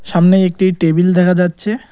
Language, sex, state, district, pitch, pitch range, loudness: Bengali, male, West Bengal, Cooch Behar, 180 Hz, 175-190 Hz, -13 LUFS